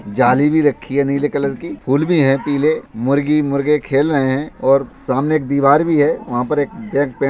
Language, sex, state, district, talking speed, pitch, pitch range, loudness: Hindi, male, Uttar Pradesh, Budaun, 215 wpm, 140 Hz, 135-150 Hz, -16 LUFS